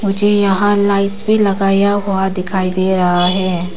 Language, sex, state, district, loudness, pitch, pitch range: Hindi, female, Arunachal Pradesh, Papum Pare, -14 LUFS, 195 Hz, 185-200 Hz